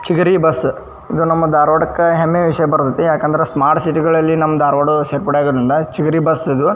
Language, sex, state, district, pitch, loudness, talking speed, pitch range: Kannada, male, Karnataka, Dharwad, 155 Hz, -14 LUFS, 175 wpm, 145-165 Hz